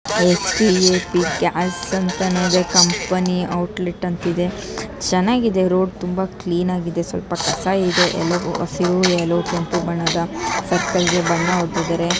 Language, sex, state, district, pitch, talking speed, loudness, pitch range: Kannada, female, Karnataka, Chamarajanagar, 180 Hz, 110 wpm, -19 LUFS, 170-185 Hz